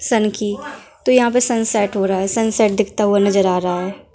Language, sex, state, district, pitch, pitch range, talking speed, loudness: Hindi, female, Bihar, Muzaffarpur, 210 Hz, 195-235 Hz, 245 wpm, -17 LUFS